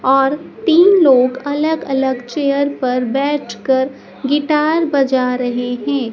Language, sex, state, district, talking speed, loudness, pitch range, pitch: Hindi, male, Madhya Pradesh, Dhar, 125 wpm, -15 LUFS, 255-295 Hz, 275 Hz